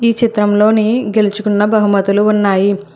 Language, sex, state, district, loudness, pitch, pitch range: Telugu, female, Telangana, Hyderabad, -13 LUFS, 210 Hz, 200-220 Hz